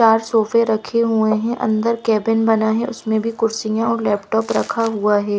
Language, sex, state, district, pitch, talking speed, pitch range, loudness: Hindi, female, Haryana, Rohtak, 225 Hz, 190 wpm, 220-230 Hz, -18 LUFS